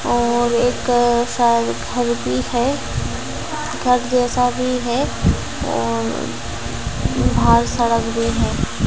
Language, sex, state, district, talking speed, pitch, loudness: Hindi, female, Bihar, Saharsa, 100 wpm, 235 Hz, -19 LUFS